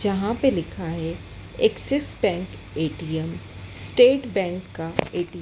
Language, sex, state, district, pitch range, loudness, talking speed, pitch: Hindi, female, Madhya Pradesh, Dhar, 160-235 Hz, -24 LUFS, 135 wpm, 180 Hz